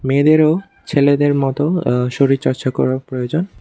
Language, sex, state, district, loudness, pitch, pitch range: Bengali, male, Tripura, West Tripura, -16 LUFS, 140 Hz, 130-155 Hz